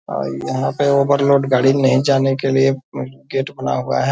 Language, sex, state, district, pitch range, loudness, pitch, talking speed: Hindi, male, Bihar, Purnia, 130-140 Hz, -17 LUFS, 135 Hz, 190 wpm